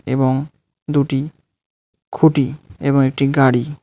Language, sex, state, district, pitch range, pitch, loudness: Bengali, male, West Bengal, Alipurduar, 135-150 Hz, 140 Hz, -17 LUFS